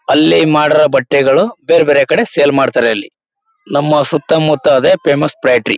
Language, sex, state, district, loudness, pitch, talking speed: Kannada, male, Karnataka, Mysore, -11 LUFS, 150 Hz, 155 wpm